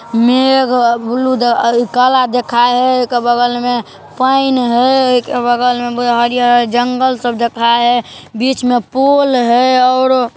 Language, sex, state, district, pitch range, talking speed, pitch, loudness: Maithili, male, Bihar, Darbhanga, 240-255 Hz, 140 wpm, 245 Hz, -12 LUFS